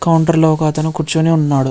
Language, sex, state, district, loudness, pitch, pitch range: Telugu, male, Andhra Pradesh, Visakhapatnam, -14 LUFS, 160 Hz, 155-160 Hz